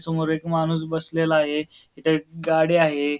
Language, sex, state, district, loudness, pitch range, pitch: Marathi, male, Maharashtra, Pune, -22 LUFS, 155-165 Hz, 160 Hz